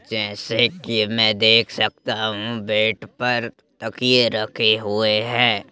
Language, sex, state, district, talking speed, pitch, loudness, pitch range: Hindi, male, Madhya Pradesh, Bhopal, 135 wpm, 110 Hz, -19 LUFS, 110-115 Hz